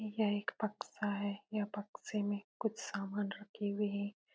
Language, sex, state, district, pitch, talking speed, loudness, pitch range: Hindi, female, Uttar Pradesh, Etah, 205 Hz, 165 wpm, -39 LUFS, 200-215 Hz